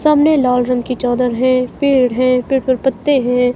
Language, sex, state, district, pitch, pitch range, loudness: Hindi, female, Himachal Pradesh, Shimla, 255 Hz, 250-270 Hz, -14 LUFS